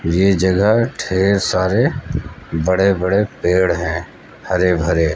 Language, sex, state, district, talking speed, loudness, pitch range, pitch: Hindi, male, Uttar Pradesh, Lucknow, 115 wpm, -17 LUFS, 90-100 Hz, 95 Hz